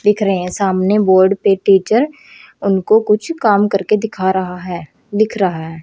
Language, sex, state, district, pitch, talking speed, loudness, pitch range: Hindi, female, Haryana, Rohtak, 200 Hz, 175 wpm, -15 LUFS, 185-215 Hz